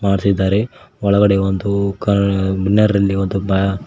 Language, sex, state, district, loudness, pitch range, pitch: Kannada, male, Karnataka, Koppal, -16 LUFS, 95-100 Hz, 100 Hz